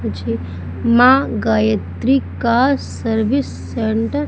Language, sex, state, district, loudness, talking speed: Hindi, female, Madhya Pradesh, Umaria, -17 LUFS, 100 wpm